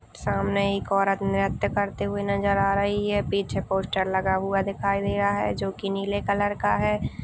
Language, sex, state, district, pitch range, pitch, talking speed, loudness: Hindi, female, Goa, North and South Goa, 195-200 Hz, 200 Hz, 200 wpm, -25 LUFS